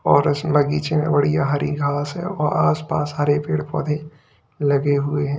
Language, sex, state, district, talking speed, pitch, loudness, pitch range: Hindi, male, Uttar Pradesh, Lalitpur, 180 wpm, 145 Hz, -20 LUFS, 140-150 Hz